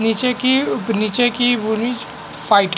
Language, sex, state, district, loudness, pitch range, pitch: Hindi, male, Bihar, Lakhisarai, -17 LUFS, 220-245 Hz, 230 Hz